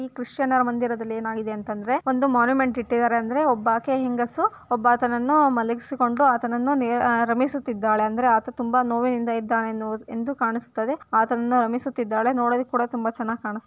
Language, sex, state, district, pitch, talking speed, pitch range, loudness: Kannada, female, Karnataka, Dharwad, 240 Hz, 130 wpm, 230-255 Hz, -23 LUFS